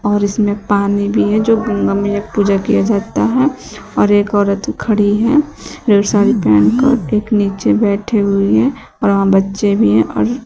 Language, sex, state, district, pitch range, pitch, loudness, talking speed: Hindi, female, Uttar Pradesh, Shamli, 200-220 Hz, 205 Hz, -14 LUFS, 195 wpm